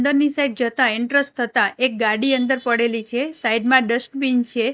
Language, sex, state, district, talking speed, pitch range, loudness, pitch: Gujarati, female, Gujarat, Gandhinagar, 175 wpm, 235-270 Hz, -19 LUFS, 250 Hz